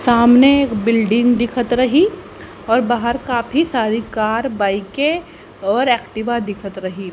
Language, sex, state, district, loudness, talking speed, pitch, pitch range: Hindi, female, Haryana, Jhajjar, -16 LUFS, 135 wpm, 235 Hz, 220-255 Hz